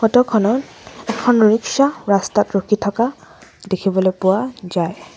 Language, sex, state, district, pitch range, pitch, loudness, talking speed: Assamese, female, Assam, Sonitpur, 195-235 Hz, 210 Hz, -17 LUFS, 105 wpm